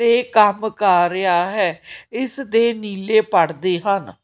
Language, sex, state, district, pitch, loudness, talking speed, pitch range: Punjabi, female, Punjab, Kapurthala, 205 Hz, -18 LUFS, 140 wpm, 185-230 Hz